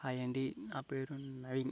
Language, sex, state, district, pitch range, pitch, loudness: Telugu, male, Andhra Pradesh, Guntur, 130-135 Hz, 135 Hz, -41 LUFS